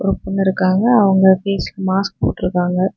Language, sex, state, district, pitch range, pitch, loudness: Tamil, female, Tamil Nadu, Kanyakumari, 185-195 Hz, 190 Hz, -16 LUFS